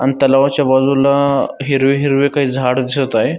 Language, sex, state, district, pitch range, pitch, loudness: Marathi, male, Maharashtra, Dhule, 135-140 Hz, 135 Hz, -14 LUFS